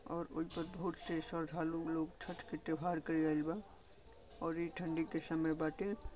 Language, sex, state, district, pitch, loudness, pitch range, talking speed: Bhojpuri, male, Uttar Pradesh, Gorakhpur, 165 Hz, -40 LUFS, 160-170 Hz, 135 wpm